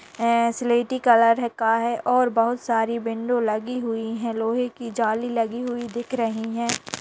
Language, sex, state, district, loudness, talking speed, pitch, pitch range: Hindi, female, Bihar, Kishanganj, -23 LUFS, 160 wpm, 235 Hz, 230-240 Hz